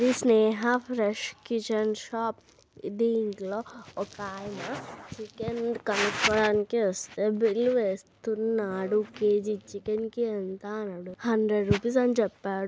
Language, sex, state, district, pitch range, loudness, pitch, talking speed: Telugu, female, Telangana, Nalgonda, 205-230 Hz, -28 LUFS, 215 Hz, 95 wpm